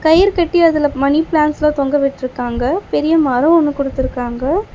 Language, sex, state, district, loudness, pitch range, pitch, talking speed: Tamil, female, Tamil Nadu, Chennai, -15 LUFS, 270-325 Hz, 295 Hz, 125 wpm